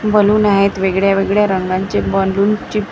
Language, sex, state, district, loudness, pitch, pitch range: Marathi, female, Maharashtra, Gondia, -14 LUFS, 200 Hz, 195-210 Hz